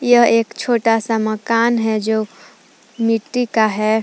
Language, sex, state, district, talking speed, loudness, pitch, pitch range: Hindi, female, Jharkhand, Palamu, 150 wpm, -17 LUFS, 225 Hz, 220-235 Hz